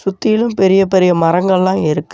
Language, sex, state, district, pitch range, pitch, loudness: Tamil, male, Tamil Nadu, Namakkal, 175-195 Hz, 190 Hz, -13 LUFS